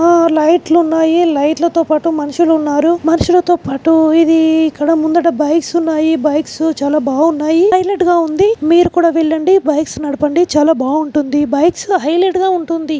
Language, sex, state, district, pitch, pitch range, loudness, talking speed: Telugu, male, Andhra Pradesh, Chittoor, 320 Hz, 305-340 Hz, -12 LUFS, 150 wpm